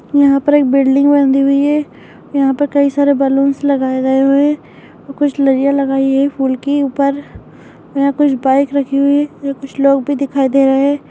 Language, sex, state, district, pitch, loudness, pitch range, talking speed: Hindi, female, Bihar, Madhepura, 275 Hz, -13 LUFS, 275-285 Hz, 195 wpm